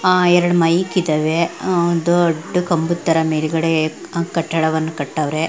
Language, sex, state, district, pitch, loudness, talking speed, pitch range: Kannada, female, Karnataka, Belgaum, 165 Hz, -17 LUFS, 110 wpm, 160-175 Hz